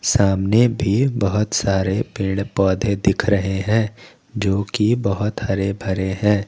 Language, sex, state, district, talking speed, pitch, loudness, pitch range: Hindi, male, Jharkhand, Garhwa, 140 wpm, 100 Hz, -19 LUFS, 95-110 Hz